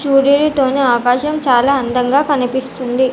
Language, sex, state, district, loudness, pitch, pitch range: Telugu, female, Telangana, Komaram Bheem, -14 LUFS, 260 Hz, 250-280 Hz